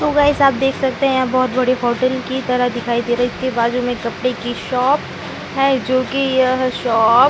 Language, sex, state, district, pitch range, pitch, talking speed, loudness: Hindi, female, Chhattisgarh, Sukma, 240-265 Hz, 255 Hz, 230 wpm, -17 LUFS